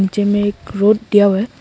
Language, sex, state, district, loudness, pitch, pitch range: Hindi, male, Arunachal Pradesh, Longding, -15 LUFS, 205 Hz, 200-210 Hz